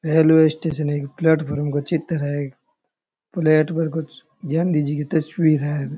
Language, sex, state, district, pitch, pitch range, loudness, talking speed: Rajasthani, male, Rajasthan, Churu, 155 Hz, 145-160 Hz, -20 LUFS, 140 wpm